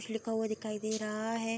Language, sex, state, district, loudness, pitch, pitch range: Hindi, female, Bihar, Darbhanga, -35 LUFS, 220 Hz, 215-225 Hz